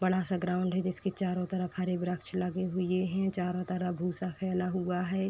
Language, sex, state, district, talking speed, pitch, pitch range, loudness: Hindi, female, Uttar Pradesh, Deoria, 190 wpm, 185 Hz, 180-185 Hz, -31 LUFS